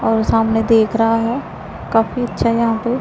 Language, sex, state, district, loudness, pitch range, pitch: Hindi, female, Punjab, Pathankot, -16 LUFS, 225-235 Hz, 225 Hz